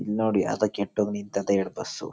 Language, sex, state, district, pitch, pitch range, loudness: Kannada, male, Karnataka, Chamarajanagar, 100 Hz, 100-105 Hz, -26 LUFS